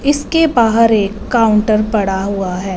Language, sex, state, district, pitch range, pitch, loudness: Hindi, female, Punjab, Fazilka, 200-235 Hz, 215 Hz, -14 LUFS